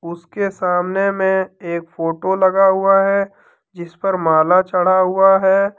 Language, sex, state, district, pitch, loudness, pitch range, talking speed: Hindi, male, Jharkhand, Deoghar, 190 Hz, -16 LUFS, 175-195 Hz, 145 wpm